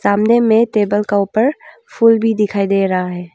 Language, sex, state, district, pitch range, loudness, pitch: Hindi, female, Arunachal Pradesh, Longding, 195-225 Hz, -14 LUFS, 210 Hz